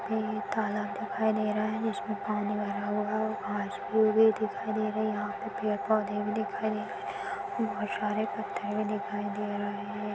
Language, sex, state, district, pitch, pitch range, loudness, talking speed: Hindi, female, Bihar, Vaishali, 210 Hz, 205-215 Hz, -31 LUFS, 195 wpm